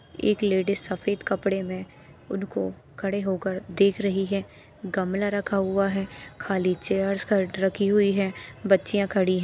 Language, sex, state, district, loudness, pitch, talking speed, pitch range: Hindi, female, Chhattisgarh, Jashpur, -26 LUFS, 195 Hz, 150 wpm, 185-200 Hz